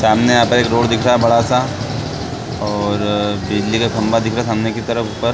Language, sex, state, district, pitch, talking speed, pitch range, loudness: Hindi, male, Chhattisgarh, Balrampur, 115 Hz, 245 wpm, 110-120 Hz, -16 LUFS